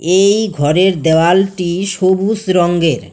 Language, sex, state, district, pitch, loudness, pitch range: Bengali, female, West Bengal, Alipurduar, 185 Hz, -13 LUFS, 170-195 Hz